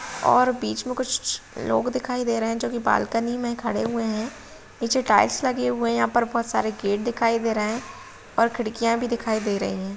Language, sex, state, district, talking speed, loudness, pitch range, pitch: Hindi, female, Bihar, Gopalganj, 230 wpm, -24 LUFS, 225-245 Hz, 235 Hz